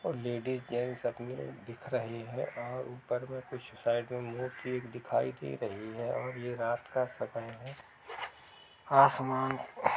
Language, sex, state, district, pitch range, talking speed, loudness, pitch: Hindi, male, Uttar Pradesh, Jalaun, 120-130 Hz, 150 wpm, -35 LUFS, 125 Hz